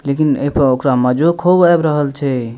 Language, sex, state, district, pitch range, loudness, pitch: Maithili, male, Bihar, Madhepura, 130-160 Hz, -14 LUFS, 140 Hz